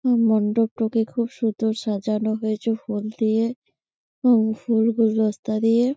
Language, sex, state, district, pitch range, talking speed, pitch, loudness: Bengali, female, West Bengal, Malda, 215-230 Hz, 110 wpm, 225 Hz, -22 LUFS